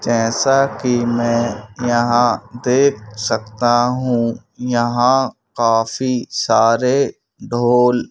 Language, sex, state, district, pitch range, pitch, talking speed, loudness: Hindi, male, Madhya Pradesh, Bhopal, 115-125 Hz, 120 Hz, 80 wpm, -17 LUFS